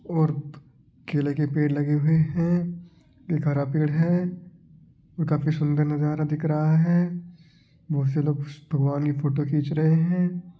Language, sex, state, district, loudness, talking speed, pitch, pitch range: Marwari, male, Rajasthan, Nagaur, -24 LUFS, 155 wpm, 155 Hz, 145-165 Hz